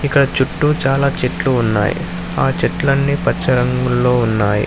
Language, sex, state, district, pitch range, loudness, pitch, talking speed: Telugu, male, Telangana, Hyderabad, 105-140 Hz, -16 LUFS, 130 Hz, 130 wpm